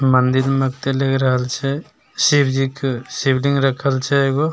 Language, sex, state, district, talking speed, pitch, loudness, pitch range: Maithili, male, Bihar, Begusarai, 170 wpm, 135 Hz, -18 LUFS, 130-140 Hz